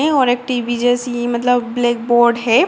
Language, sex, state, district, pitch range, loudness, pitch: Hindi, female, Bihar, Jamui, 240-245 Hz, -16 LUFS, 240 Hz